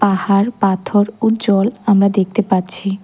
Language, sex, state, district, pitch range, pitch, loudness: Bengali, female, Tripura, West Tripura, 195-215 Hz, 200 Hz, -15 LUFS